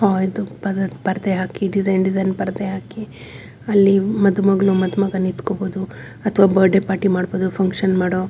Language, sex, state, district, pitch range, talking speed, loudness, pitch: Kannada, female, Karnataka, Bellary, 190-195 Hz, 145 wpm, -19 LUFS, 195 Hz